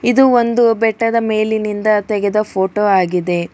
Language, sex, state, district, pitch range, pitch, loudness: Kannada, female, Karnataka, Bangalore, 200-230 Hz, 215 Hz, -15 LUFS